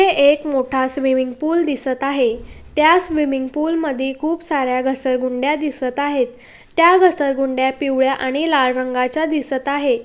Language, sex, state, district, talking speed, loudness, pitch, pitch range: Marathi, female, Maharashtra, Pune, 135 wpm, -18 LUFS, 275 Hz, 260-300 Hz